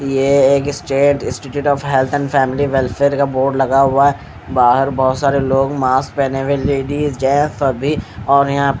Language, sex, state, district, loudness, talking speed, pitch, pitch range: Hindi, male, Maharashtra, Mumbai Suburban, -15 LUFS, 185 wpm, 140 Hz, 135-140 Hz